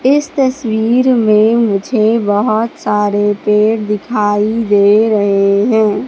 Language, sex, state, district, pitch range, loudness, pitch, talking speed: Hindi, female, Madhya Pradesh, Katni, 205-230 Hz, -12 LUFS, 215 Hz, 110 wpm